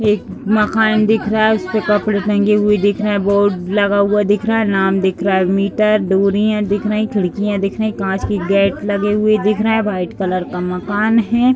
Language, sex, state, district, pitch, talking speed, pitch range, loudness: Hindi, female, Uttar Pradesh, Varanasi, 205 Hz, 225 wpm, 195-215 Hz, -15 LUFS